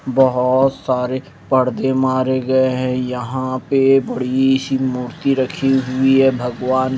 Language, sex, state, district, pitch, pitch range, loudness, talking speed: Hindi, male, Bihar, Kaimur, 130 Hz, 125-135 Hz, -17 LUFS, 130 wpm